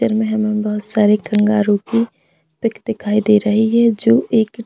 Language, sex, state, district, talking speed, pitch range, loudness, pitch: Hindi, female, Chhattisgarh, Bilaspur, 155 wpm, 210-225 Hz, -16 LUFS, 215 Hz